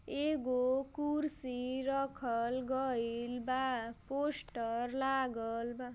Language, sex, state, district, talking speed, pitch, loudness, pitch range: Bhojpuri, female, Uttar Pradesh, Gorakhpur, 80 wpm, 255 Hz, -36 LUFS, 240-270 Hz